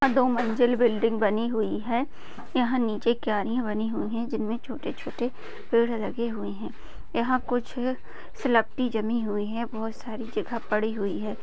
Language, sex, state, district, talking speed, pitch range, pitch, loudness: Hindi, female, Uttar Pradesh, Hamirpur, 165 wpm, 220-245 Hz, 230 Hz, -27 LUFS